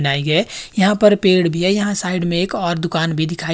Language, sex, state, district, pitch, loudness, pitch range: Hindi, male, Himachal Pradesh, Shimla, 175 Hz, -17 LUFS, 165-195 Hz